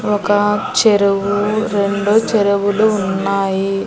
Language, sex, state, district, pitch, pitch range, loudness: Telugu, female, Andhra Pradesh, Annamaya, 205 Hz, 200-210 Hz, -15 LUFS